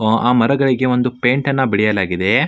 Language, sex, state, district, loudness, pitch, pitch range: Kannada, male, Karnataka, Mysore, -16 LUFS, 125 Hz, 105-130 Hz